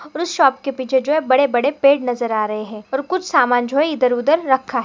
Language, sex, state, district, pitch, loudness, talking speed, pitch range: Hindi, female, Maharashtra, Pune, 265 Hz, -17 LUFS, 285 wpm, 245-290 Hz